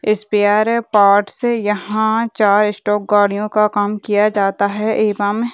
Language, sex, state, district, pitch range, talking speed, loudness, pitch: Hindi, female, Bihar, Muzaffarpur, 205-220 Hz, 140 wpm, -16 LUFS, 210 Hz